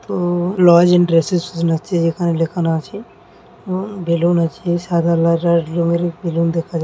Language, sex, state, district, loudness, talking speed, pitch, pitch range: Bengali, male, West Bengal, Jhargram, -16 LUFS, 140 wpm, 170 Hz, 165-175 Hz